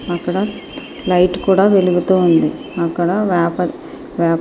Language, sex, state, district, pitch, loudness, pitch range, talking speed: Telugu, female, Andhra Pradesh, Srikakulam, 180 Hz, -16 LUFS, 170-190 Hz, 120 wpm